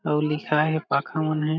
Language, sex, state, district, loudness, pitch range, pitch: Chhattisgarhi, male, Chhattisgarh, Jashpur, -24 LUFS, 150-155 Hz, 155 Hz